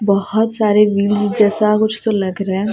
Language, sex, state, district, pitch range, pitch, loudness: Hindi, female, Maharashtra, Mumbai Suburban, 200-215 Hz, 210 Hz, -15 LUFS